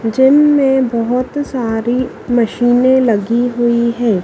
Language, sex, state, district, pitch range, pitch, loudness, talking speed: Hindi, female, Madhya Pradesh, Dhar, 235-260 Hz, 245 Hz, -13 LUFS, 115 wpm